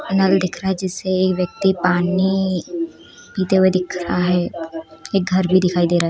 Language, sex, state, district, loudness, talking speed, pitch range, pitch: Hindi, female, Bihar, East Champaran, -19 LUFS, 195 wpm, 180-195 Hz, 185 Hz